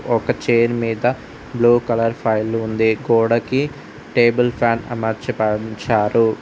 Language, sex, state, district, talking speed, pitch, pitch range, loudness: Telugu, male, Telangana, Mahabubabad, 105 wpm, 115 Hz, 110-120 Hz, -18 LUFS